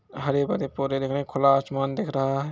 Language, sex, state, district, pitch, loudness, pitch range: Hindi, male, Bihar, Gaya, 135 Hz, -25 LUFS, 135-140 Hz